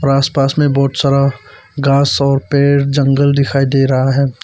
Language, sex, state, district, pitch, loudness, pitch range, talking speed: Hindi, male, Arunachal Pradesh, Papum Pare, 140 Hz, -13 LUFS, 135-140 Hz, 190 wpm